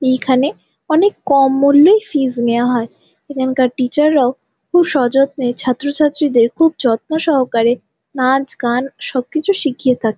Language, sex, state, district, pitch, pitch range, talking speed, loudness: Bengali, female, West Bengal, Jalpaiguri, 265 Hz, 250-295 Hz, 135 wpm, -15 LUFS